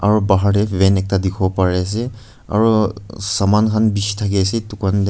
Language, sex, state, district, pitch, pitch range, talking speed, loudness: Nagamese, male, Nagaland, Kohima, 100 Hz, 95-110 Hz, 200 wpm, -17 LUFS